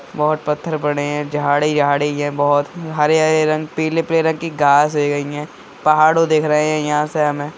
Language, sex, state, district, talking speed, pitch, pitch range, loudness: Hindi, male, Uttar Pradesh, Budaun, 175 wpm, 150 Hz, 145-155 Hz, -17 LUFS